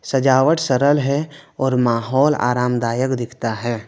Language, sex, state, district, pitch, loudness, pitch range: Hindi, male, West Bengal, Alipurduar, 130 Hz, -18 LUFS, 120-140 Hz